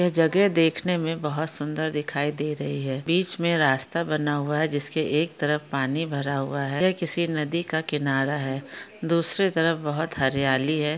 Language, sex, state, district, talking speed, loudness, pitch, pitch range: Hindi, female, Maharashtra, Pune, 180 wpm, -25 LUFS, 155 Hz, 145-165 Hz